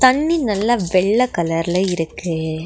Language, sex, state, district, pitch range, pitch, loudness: Tamil, female, Tamil Nadu, Nilgiris, 165-240 Hz, 185 Hz, -18 LUFS